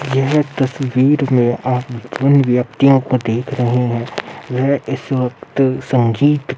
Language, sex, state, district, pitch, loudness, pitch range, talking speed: Hindi, male, Uttar Pradesh, Muzaffarnagar, 130 Hz, -16 LUFS, 125-135 Hz, 135 wpm